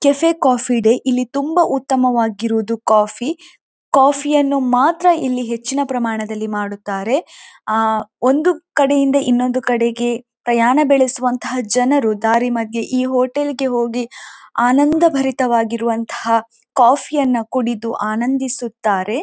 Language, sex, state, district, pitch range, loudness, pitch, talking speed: Kannada, female, Karnataka, Dakshina Kannada, 230-275 Hz, -17 LUFS, 250 Hz, 105 wpm